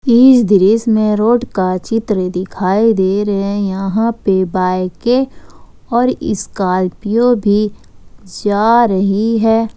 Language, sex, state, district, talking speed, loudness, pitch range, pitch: Hindi, female, Jharkhand, Ranchi, 115 wpm, -14 LUFS, 190-230 Hz, 210 Hz